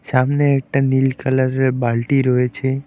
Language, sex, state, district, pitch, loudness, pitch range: Bengali, male, West Bengal, Alipurduar, 130 Hz, -17 LUFS, 130-135 Hz